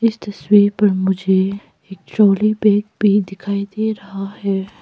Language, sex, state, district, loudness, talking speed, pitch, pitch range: Hindi, female, Arunachal Pradesh, Papum Pare, -17 LUFS, 150 wpm, 200 Hz, 195-210 Hz